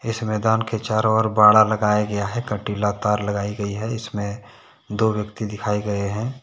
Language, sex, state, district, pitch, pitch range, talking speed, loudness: Hindi, male, Jharkhand, Deoghar, 105 Hz, 105-110 Hz, 195 wpm, -21 LUFS